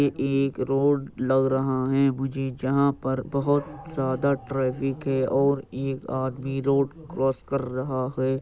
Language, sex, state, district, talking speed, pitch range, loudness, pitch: Hindi, male, Uttar Pradesh, Jyotiba Phule Nagar, 150 wpm, 130-140 Hz, -25 LUFS, 135 Hz